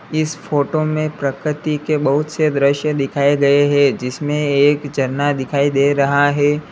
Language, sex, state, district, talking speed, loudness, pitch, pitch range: Hindi, male, Uttar Pradesh, Lalitpur, 160 wpm, -17 LUFS, 145 Hz, 140-150 Hz